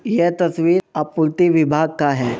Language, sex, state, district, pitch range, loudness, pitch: Hindi, male, Uttar Pradesh, Budaun, 150-175 Hz, -17 LUFS, 160 Hz